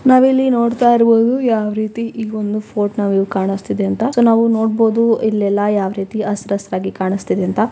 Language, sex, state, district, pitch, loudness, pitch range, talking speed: Kannada, female, Karnataka, Chamarajanagar, 215 Hz, -16 LUFS, 200-230 Hz, 165 wpm